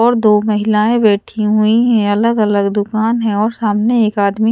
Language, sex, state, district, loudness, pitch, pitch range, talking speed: Hindi, female, Odisha, Sambalpur, -13 LUFS, 215 Hz, 210-225 Hz, 185 wpm